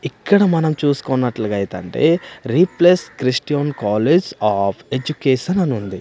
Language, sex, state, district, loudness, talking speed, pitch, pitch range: Telugu, male, Andhra Pradesh, Manyam, -18 LUFS, 110 wpm, 135 Hz, 110-165 Hz